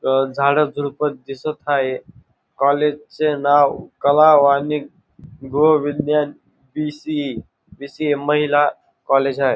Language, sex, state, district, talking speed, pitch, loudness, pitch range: Marathi, male, Maharashtra, Dhule, 95 wpm, 145 Hz, -18 LUFS, 140-150 Hz